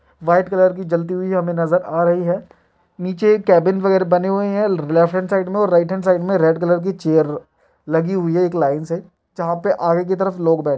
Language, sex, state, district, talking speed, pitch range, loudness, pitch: Hindi, male, Chhattisgarh, Kabirdham, 240 wpm, 170-190 Hz, -17 LUFS, 180 Hz